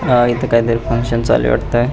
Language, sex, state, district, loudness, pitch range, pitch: Marathi, male, Maharashtra, Pune, -15 LUFS, 115-125 Hz, 120 Hz